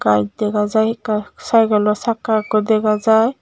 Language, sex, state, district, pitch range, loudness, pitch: Chakma, female, Tripura, Unakoti, 210-225 Hz, -17 LUFS, 215 Hz